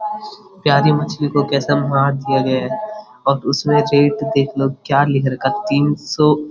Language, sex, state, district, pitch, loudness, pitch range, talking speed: Hindi, male, Uttarakhand, Uttarkashi, 145 Hz, -17 LUFS, 135-150 Hz, 175 wpm